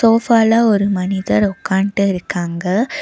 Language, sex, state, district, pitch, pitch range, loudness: Tamil, female, Tamil Nadu, Nilgiris, 200 Hz, 190-225 Hz, -16 LUFS